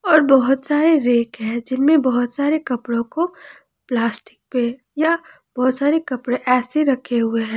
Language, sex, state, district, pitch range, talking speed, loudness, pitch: Hindi, female, Jharkhand, Ranchi, 240-305 Hz, 160 wpm, -19 LUFS, 255 Hz